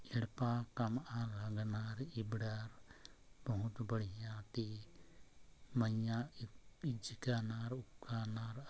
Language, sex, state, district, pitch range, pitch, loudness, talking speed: Sadri, male, Chhattisgarh, Jashpur, 110-120 Hz, 115 Hz, -43 LUFS, 75 wpm